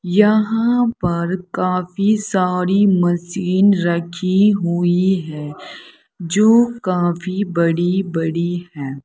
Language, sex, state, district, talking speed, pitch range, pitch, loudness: Hindi, female, Uttar Pradesh, Saharanpur, 85 wpm, 175-200 Hz, 185 Hz, -17 LUFS